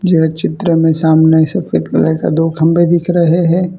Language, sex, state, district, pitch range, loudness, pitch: Hindi, male, Gujarat, Valsad, 160-175 Hz, -12 LUFS, 165 Hz